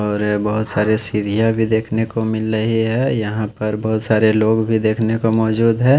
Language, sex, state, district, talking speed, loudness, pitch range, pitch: Hindi, male, Chhattisgarh, Raipur, 210 wpm, -17 LUFS, 110-115 Hz, 110 Hz